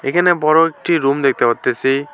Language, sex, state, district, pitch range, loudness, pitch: Bengali, male, West Bengal, Alipurduar, 135-165 Hz, -15 LUFS, 140 Hz